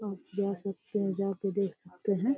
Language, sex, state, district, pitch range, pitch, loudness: Hindi, female, Uttar Pradesh, Deoria, 195-205 Hz, 195 Hz, -33 LUFS